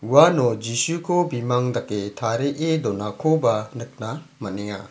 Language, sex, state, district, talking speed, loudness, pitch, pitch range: Garo, male, Meghalaya, South Garo Hills, 95 wpm, -22 LUFS, 120 Hz, 105-155 Hz